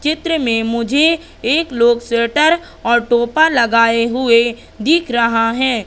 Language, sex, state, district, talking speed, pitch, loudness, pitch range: Hindi, female, Madhya Pradesh, Katni, 135 wpm, 240 Hz, -14 LUFS, 235-305 Hz